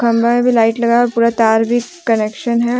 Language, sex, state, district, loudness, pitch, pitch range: Hindi, female, Jharkhand, Deoghar, -14 LUFS, 235 Hz, 225-240 Hz